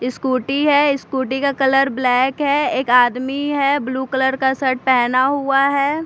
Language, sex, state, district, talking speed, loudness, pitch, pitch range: Hindi, female, Bihar, Katihar, 170 wpm, -17 LUFS, 265 Hz, 260-280 Hz